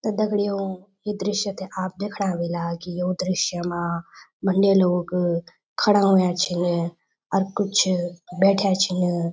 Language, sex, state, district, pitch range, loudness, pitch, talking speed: Garhwali, female, Uttarakhand, Tehri Garhwal, 175-195 Hz, -23 LUFS, 185 Hz, 135 wpm